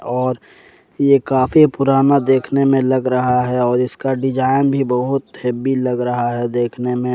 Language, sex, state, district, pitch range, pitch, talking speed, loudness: Hindi, male, Jharkhand, Ranchi, 125-135 Hz, 130 Hz, 170 wpm, -16 LUFS